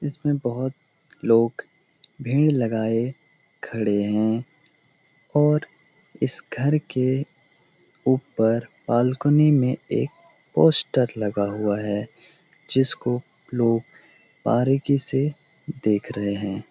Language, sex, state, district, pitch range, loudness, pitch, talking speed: Hindi, male, Bihar, Lakhisarai, 115-150 Hz, -23 LUFS, 130 Hz, 95 wpm